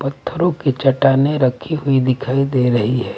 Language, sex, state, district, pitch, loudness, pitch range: Hindi, male, Maharashtra, Mumbai Suburban, 135 Hz, -17 LUFS, 130-140 Hz